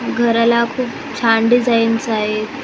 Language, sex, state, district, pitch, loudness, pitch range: Marathi, female, Maharashtra, Gondia, 235 Hz, -16 LUFS, 225-240 Hz